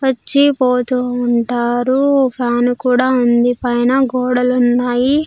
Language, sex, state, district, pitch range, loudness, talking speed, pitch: Telugu, female, Andhra Pradesh, Sri Satya Sai, 245-260 Hz, -14 LUFS, 100 wpm, 250 Hz